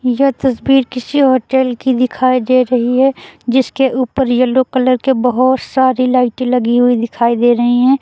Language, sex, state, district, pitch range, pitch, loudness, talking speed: Hindi, female, Uttar Pradesh, Lucknow, 245-260 Hz, 255 Hz, -13 LUFS, 170 wpm